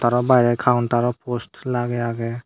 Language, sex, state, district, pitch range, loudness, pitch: Chakma, male, Tripura, Dhalai, 120-125 Hz, -20 LUFS, 120 Hz